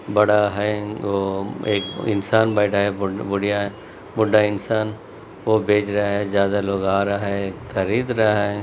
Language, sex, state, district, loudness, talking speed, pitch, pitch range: Hindi, male, Maharashtra, Chandrapur, -21 LUFS, 145 wpm, 100 Hz, 100-105 Hz